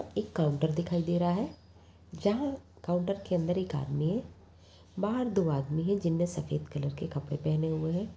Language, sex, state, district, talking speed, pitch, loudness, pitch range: Hindi, female, Bihar, Bhagalpur, 190 wpm, 165 Hz, -32 LUFS, 150-185 Hz